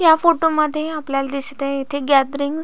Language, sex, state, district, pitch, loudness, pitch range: Marathi, female, Maharashtra, Aurangabad, 285 Hz, -19 LUFS, 275-315 Hz